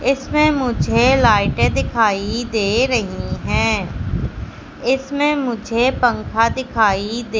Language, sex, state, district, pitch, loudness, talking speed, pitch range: Hindi, female, Madhya Pradesh, Katni, 240 Hz, -18 LUFS, 95 wpm, 220-265 Hz